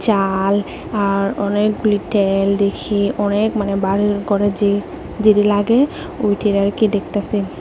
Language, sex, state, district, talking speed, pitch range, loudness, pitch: Bengali, female, Tripura, West Tripura, 120 wpm, 200-210 Hz, -17 LUFS, 205 Hz